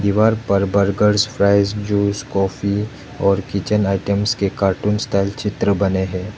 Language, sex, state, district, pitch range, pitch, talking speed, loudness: Hindi, male, Arunachal Pradesh, Lower Dibang Valley, 100-105 Hz, 100 Hz, 140 wpm, -18 LUFS